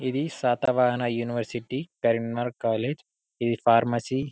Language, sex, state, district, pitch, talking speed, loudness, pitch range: Telugu, male, Telangana, Karimnagar, 120 Hz, 110 wpm, -26 LUFS, 115-130 Hz